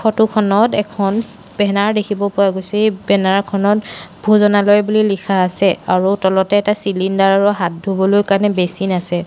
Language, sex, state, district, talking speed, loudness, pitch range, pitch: Assamese, female, Assam, Sonitpur, 155 wpm, -15 LUFS, 190-210 Hz, 200 Hz